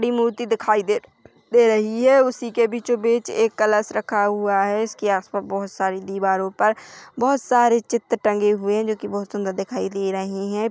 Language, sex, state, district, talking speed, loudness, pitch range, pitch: Hindi, female, Chhattisgarh, Korba, 190 wpm, -21 LUFS, 200-235 Hz, 215 Hz